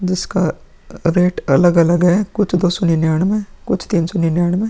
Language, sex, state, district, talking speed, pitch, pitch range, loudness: Hindi, female, Bihar, Vaishali, 155 wpm, 180 Hz, 170-190 Hz, -16 LUFS